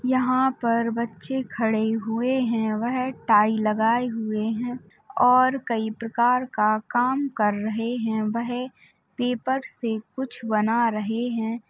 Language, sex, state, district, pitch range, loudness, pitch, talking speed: Hindi, female, Uttar Pradesh, Hamirpur, 220-250 Hz, -24 LUFS, 235 Hz, 135 wpm